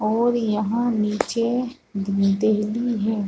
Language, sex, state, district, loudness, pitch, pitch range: Hindi, female, Chhattisgarh, Balrampur, -22 LUFS, 220 Hz, 210-235 Hz